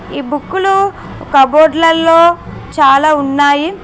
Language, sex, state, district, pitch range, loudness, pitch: Telugu, female, Telangana, Mahabubabad, 285-335 Hz, -10 LUFS, 315 Hz